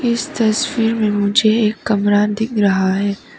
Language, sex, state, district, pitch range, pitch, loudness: Hindi, female, Arunachal Pradesh, Papum Pare, 205-225 Hz, 215 Hz, -16 LUFS